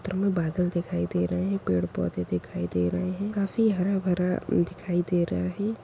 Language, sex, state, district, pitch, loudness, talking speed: Kumaoni, female, Uttarakhand, Tehri Garhwal, 175 Hz, -27 LUFS, 195 wpm